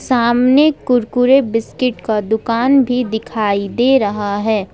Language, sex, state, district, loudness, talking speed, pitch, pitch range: Hindi, female, Jharkhand, Ranchi, -15 LUFS, 125 wpm, 235 Hz, 215-255 Hz